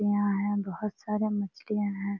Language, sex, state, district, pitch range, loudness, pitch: Hindi, female, Bihar, Jamui, 200-210 Hz, -30 LUFS, 205 Hz